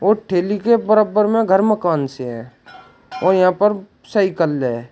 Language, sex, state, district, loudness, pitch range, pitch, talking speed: Hindi, male, Uttar Pradesh, Shamli, -17 LUFS, 160-210 Hz, 190 Hz, 170 wpm